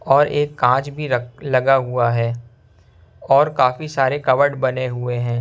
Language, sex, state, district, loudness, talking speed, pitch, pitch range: Hindi, male, Punjab, Kapurthala, -18 LUFS, 155 wpm, 130 Hz, 120-140 Hz